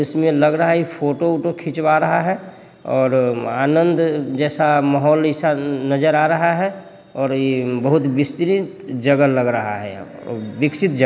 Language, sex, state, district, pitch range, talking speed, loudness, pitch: Bhojpuri, male, Bihar, Sitamarhi, 135-165 Hz, 155 wpm, -18 LUFS, 150 Hz